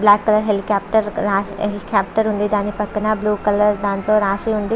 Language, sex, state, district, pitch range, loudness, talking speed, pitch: Telugu, female, Andhra Pradesh, Visakhapatnam, 205-215 Hz, -18 LUFS, 150 wpm, 210 Hz